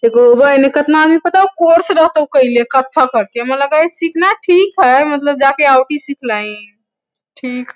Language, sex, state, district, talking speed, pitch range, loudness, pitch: Hindi, female, Bihar, Lakhisarai, 170 wpm, 260-335 Hz, -11 LUFS, 290 Hz